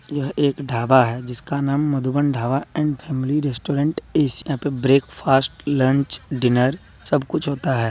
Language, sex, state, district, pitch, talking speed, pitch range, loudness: Hindi, male, Jharkhand, Deoghar, 135 Hz, 150 wpm, 130-145 Hz, -21 LUFS